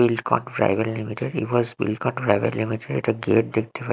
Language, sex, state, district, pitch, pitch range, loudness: Bengali, male, Odisha, Malkangiri, 110 Hz, 110-120 Hz, -23 LUFS